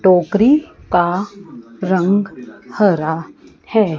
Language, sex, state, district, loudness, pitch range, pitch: Hindi, female, Chandigarh, Chandigarh, -16 LUFS, 175-205 Hz, 190 Hz